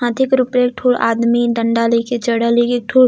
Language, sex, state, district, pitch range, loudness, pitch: Sadri, female, Chhattisgarh, Jashpur, 235-250 Hz, -15 LUFS, 240 Hz